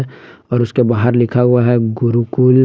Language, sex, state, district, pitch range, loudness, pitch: Hindi, male, Jharkhand, Palamu, 120-125 Hz, -14 LUFS, 120 Hz